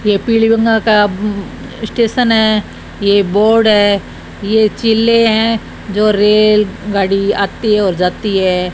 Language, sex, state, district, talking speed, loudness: Hindi, male, Rajasthan, Bikaner, 130 wpm, -12 LUFS